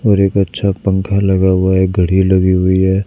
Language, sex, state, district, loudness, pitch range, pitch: Hindi, male, Haryana, Charkhi Dadri, -13 LUFS, 95-100 Hz, 95 Hz